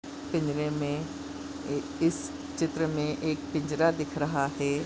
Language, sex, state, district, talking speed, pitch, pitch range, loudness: Hindi, female, Goa, North and South Goa, 125 wpm, 155 Hz, 145-205 Hz, -30 LUFS